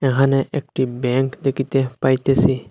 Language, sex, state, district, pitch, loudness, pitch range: Bengali, male, Assam, Hailakandi, 135 Hz, -19 LUFS, 130-135 Hz